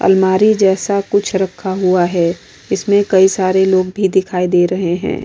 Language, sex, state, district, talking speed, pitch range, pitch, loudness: Hindi, female, Uttar Pradesh, Hamirpur, 170 wpm, 185-195 Hz, 190 Hz, -14 LUFS